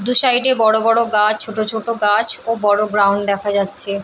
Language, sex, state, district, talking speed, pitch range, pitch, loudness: Bengali, female, West Bengal, Purulia, 235 wpm, 205-230 Hz, 215 Hz, -16 LUFS